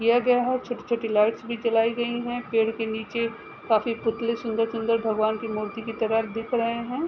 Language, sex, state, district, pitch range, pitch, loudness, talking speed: Hindi, female, Uttar Pradesh, Gorakhpur, 225-235 Hz, 230 Hz, -25 LUFS, 210 wpm